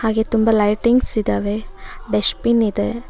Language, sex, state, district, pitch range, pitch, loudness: Kannada, female, Karnataka, Bangalore, 205-235 Hz, 220 Hz, -17 LUFS